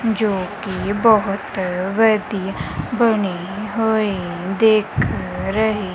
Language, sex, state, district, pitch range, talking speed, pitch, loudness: Punjabi, female, Punjab, Kapurthala, 190-220 Hz, 80 wpm, 205 Hz, -19 LUFS